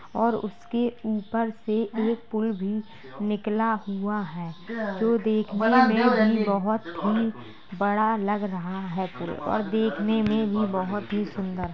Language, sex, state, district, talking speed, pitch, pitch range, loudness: Hindi, female, Uttar Pradesh, Jalaun, 140 wpm, 215 Hz, 200-225 Hz, -26 LUFS